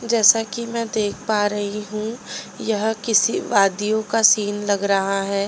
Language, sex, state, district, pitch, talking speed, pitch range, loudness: Hindi, female, Delhi, New Delhi, 215 Hz, 165 wpm, 205-225 Hz, -20 LUFS